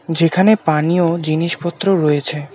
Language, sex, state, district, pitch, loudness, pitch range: Bengali, male, West Bengal, Alipurduar, 165 Hz, -16 LUFS, 155-175 Hz